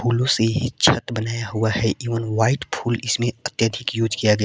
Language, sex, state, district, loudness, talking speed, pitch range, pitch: Hindi, male, Jharkhand, Garhwa, -21 LUFS, 215 wpm, 110-120 Hz, 115 Hz